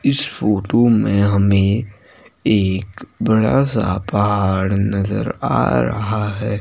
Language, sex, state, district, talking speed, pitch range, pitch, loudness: Hindi, male, Himachal Pradesh, Shimla, 110 wpm, 100-110 Hz, 100 Hz, -17 LUFS